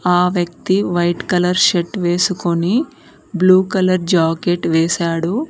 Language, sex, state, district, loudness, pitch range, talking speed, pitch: Telugu, female, Telangana, Mahabubabad, -16 LUFS, 175-185 Hz, 110 wpm, 180 Hz